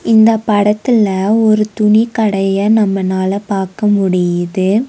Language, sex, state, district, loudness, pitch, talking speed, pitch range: Tamil, female, Tamil Nadu, Nilgiris, -13 LUFS, 205 Hz, 85 wpm, 190-220 Hz